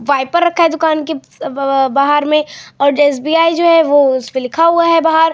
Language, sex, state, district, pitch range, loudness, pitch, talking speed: Hindi, female, Bihar, Samastipur, 275-330 Hz, -12 LUFS, 300 Hz, 215 wpm